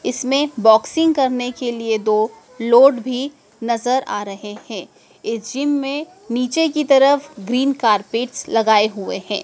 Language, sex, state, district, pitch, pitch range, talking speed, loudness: Hindi, female, Madhya Pradesh, Dhar, 245 Hz, 220-275 Hz, 145 wpm, -18 LUFS